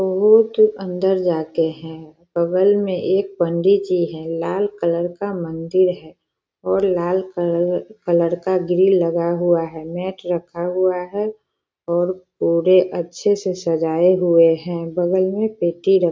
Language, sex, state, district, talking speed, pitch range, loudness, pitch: Hindi, female, Bihar, Sitamarhi, 150 wpm, 170-190 Hz, -19 LUFS, 180 Hz